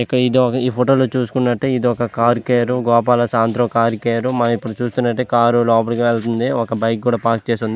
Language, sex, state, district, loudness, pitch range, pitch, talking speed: Telugu, male, Andhra Pradesh, Visakhapatnam, -17 LUFS, 115-125 Hz, 120 Hz, 195 wpm